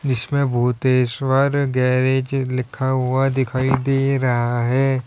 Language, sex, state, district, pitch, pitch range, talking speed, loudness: Hindi, male, Uttar Pradesh, Lalitpur, 130 Hz, 125-135 Hz, 95 wpm, -19 LUFS